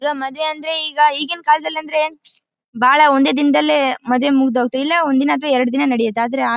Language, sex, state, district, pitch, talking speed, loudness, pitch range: Kannada, female, Karnataka, Bellary, 285 Hz, 200 wpm, -16 LUFS, 260-305 Hz